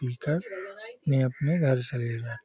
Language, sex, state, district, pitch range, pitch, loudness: Hindi, male, Uttar Pradesh, Hamirpur, 125-165 Hz, 135 Hz, -28 LUFS